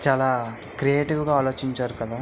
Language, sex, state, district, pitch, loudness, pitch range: Telugu, male, Andhra Pradesh, Visakhapatnam, 130 Hz, -24 LUFS, 120-140 Hz